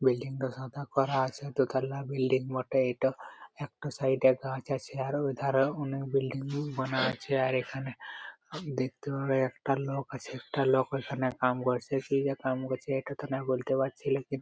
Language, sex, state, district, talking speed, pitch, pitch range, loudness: Bengali, male, West Bengal, Purulia, 180 wpm, 135 Hz, 130-140 Hz, -31 LUFS